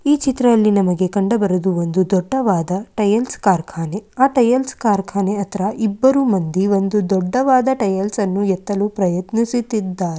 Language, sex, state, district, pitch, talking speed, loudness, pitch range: Kannada, female, Karnataka, Mysore, 200 Hz, 110 wpm, -17 LUFS, 190-235 Hz